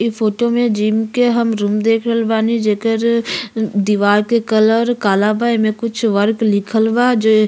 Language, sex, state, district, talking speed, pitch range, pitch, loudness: Bhojpuri, female, Uttar Pradesh, Ghazipur, 175 wpm, 215-230 Hz, 225 Hz, -15 LUFS